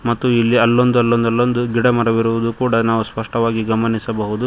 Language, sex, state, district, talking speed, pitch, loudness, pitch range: Kannada, male, Karnataka, Koppal, 145 wpm, 115 Hz, -16 LUFS, 115-120 Hz